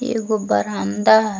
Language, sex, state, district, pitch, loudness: Magahi, female, Jharkhand, Palamu, 215 Hz, -18 LUFS